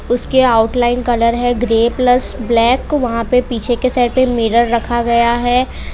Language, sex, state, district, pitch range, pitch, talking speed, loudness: Hindi, female, Gujarat, Valsad, 235-250 Hz, 240 Hz, 170 wpm, -14 LUFS